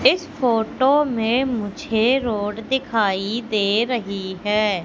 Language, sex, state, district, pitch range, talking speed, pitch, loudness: Hindi, female, Madhya Pradesh, Katni, 210-260 Hz, 110 wpm, 225 Hz, -21 LUFS